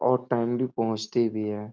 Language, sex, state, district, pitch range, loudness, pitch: Hindi, male, Uttar Pradesh, Etah, 110-125 Hz, -27 LUFS, 115 Hz